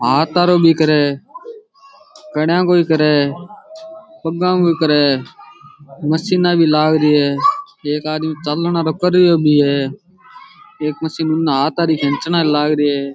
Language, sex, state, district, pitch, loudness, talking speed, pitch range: Rajasthani, male, Rajasthan, Churu, 160 Hz, -15 LUFS, 170 wpm, 150-180 Hz